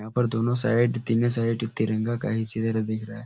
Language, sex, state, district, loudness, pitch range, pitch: Hindi, male, Uttar Pradesh, Etah, -25 LUFS, 110-120 Hz, 115 Hz